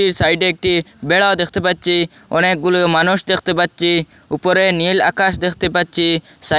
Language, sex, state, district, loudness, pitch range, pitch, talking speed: Bengali, male, Assam, Hailakandi, -15 LUFS, 170-185 Hz, 175 Hz, 135 wpm